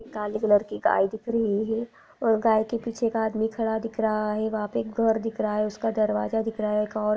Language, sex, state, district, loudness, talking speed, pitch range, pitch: Hindi, female, Chhattisgarh, Kabirdham, -26 LUFS, 260 wpm, 210-225 Hz, 220 Hz